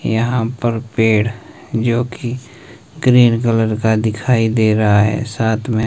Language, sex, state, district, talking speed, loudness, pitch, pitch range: Hindi, male, Himachal Pradesh, Shimla, 145 wpm, -16 LUFS, 115 Hz, 110-120 Hz